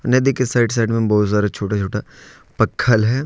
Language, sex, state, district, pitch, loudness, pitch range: Hindi, male, Jharkhand, Ranchi, 115 Hz, -18 LUFS, 105-125 Hz